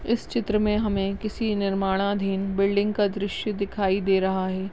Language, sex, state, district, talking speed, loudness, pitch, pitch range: Hindi, female, Goa, North and South Goa, 165 wpm, -25 LUFS, 200 Hz, 195-210 Hz